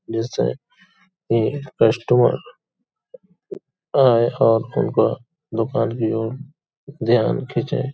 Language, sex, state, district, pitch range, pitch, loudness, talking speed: Hindi, male, Uttar Pradesh, Hamirpur, 115-155 Hz, 125 Hz, -20 LUFS, 90 wpm